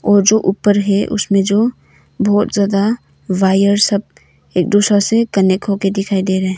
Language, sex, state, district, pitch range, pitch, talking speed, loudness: Hindi, female, Arunachal Pradesh, Longding, 190-205 Hz, 200 Hz, 190 wpm, -14 LUFS